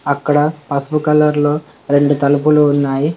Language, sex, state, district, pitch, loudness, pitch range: Telugu, male, Telangana, Komaram Bheem, 145 Hz, -14 LUFS, 145-150 Hz